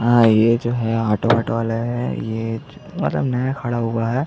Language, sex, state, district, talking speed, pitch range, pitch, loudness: Hindi, male, Chhattisgarh, Jashpur, 195 wpm, 115-120 Hz, 115 Hz, -20 LUFS